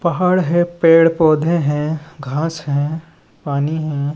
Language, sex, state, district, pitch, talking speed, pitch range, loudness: Chhattisgarhi, male, Chhattisgarh, Balrampur, 160 Hz, 130 wpm, 150-165 Hz, -16 LUFS